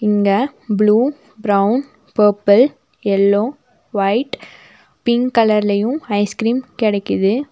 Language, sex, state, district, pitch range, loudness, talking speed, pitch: Tamil, female, Tamil Nadu, Nilgiris, 205-240 Hz, -16 LUFS, 90 wpm, 210 Hz